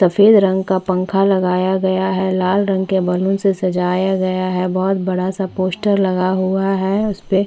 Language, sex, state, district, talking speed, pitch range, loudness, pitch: Hindi, female, Chhattisgarh, Bastar, 195 wpm, 185-195 Hz, -17 LUFS, 190 Hz